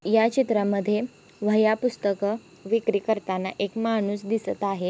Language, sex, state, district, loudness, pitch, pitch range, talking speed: Hindi, female, Maharashtra, Sindhudurg, -25 LUFS, 210 Hz, 200-225 Hz, 120 wpm